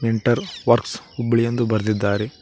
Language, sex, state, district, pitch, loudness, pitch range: Kannada, male, Karnataka, Koppal, 115 Hz, -21 LUFS, 110-120 Hz